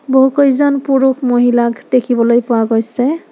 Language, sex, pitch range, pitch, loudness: Assamese, female, 240-270 Hz, 255 Hz, -13 LUFS